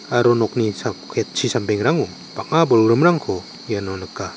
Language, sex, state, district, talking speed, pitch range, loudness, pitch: Garo, male, Meghalaya, West Garo Hills, 125 wpm, 105-120 Hz, -19 LUFS, 115 Hz